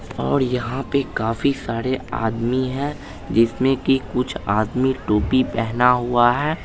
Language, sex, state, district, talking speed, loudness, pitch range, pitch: Hindi, male, Bihar, Madhepura, 135 wpm, -20 LUFS, 115-135 Hz, 125 Hz